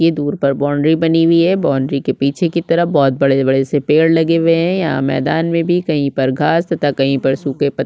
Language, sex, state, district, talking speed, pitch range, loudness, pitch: Hindi, female, Chhattisgarh, Sukma, 260 wpm, 135-165 Hz, -15 LUFS, 145 Hz